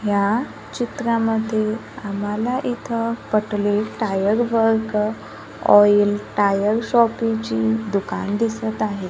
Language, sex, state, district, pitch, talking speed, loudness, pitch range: Marathi, female, Maharashtra, Gondia, 215 Hz, 85 wpm, -20 LUFS, 205-230 Hz